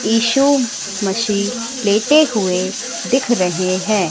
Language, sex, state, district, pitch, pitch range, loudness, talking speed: Hindi, female, Madhya Pradesh, Katni, 215 Hz, 195-245 Hz, -16 LUFS, 100 wpm